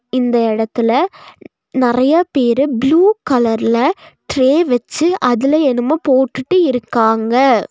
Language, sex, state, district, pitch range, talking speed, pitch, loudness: Tamil, female, Tamil Nadu, Nilgiris, 240-310 Hz, 95 wpm, 260 Hz, -14 LUFS